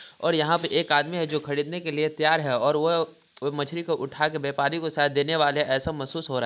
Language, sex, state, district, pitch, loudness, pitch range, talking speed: Hindi, male, Bihar, Sitamarhi, 150 Hz, -24 LUFS, 145-160 Hz, 270 wpm